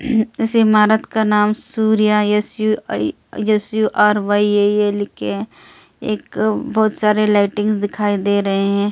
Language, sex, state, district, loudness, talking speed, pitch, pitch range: Hindi, female, Delhi, New Delhi, -17 LUFS, 155 wpm, 210 Hz, 205-220 Hz